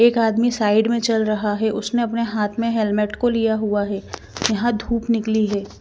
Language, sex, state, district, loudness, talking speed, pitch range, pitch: Hindi, female, Haryana, Jhajjar, -20 LUFS, 205 wpm, 210-235 Hz, 220 Hz